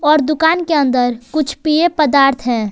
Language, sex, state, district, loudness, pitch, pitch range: Hindi, female, Jharkhand, Palamu, -14 LUFS, 295 Hz, 250-310 Hz